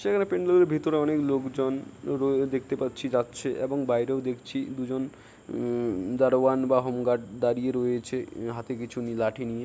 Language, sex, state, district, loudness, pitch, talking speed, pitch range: Bengali, male, West Bengal, Jalpaiguri, -27 LUFS, 130 Hz, 155 wpm, 120-135 Hz